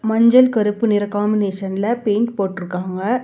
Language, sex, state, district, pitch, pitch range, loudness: Tamil, female, Tamil Nadu, Nilgiris, 210 Hz, 195-230 Hz, -18 LUFS